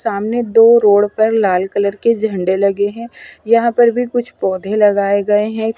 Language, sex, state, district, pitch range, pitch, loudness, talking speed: Hindi, female, Punjab, Fazilka, 200-230 Hz, 220 Hz, -14 LUFS, 185 wpm